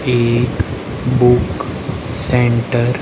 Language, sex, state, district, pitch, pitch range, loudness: Hindi, male, Haryana, Rohtak, 120 Hz, 120-125 Hz, -15 LUFS